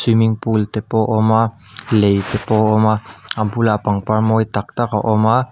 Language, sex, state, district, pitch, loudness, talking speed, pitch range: Mizo, male, Mizoram, Aizawl, 110 Hz, -17 LUFS, 240 wpm, 105-110 Hz